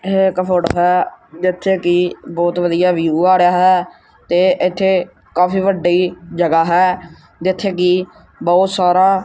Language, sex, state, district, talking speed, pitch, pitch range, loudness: Punjabi, male, Punjab, Kapurthala, 140 wpm, 180 Hz, 175-185 Hz, -15 LUFS